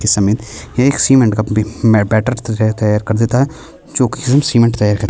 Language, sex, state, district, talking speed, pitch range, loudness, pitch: Hindi, male, Chhattisgarh, Kabirdham, 190 wpm, 105-125 Hz, -14 LUFS, 110 Hz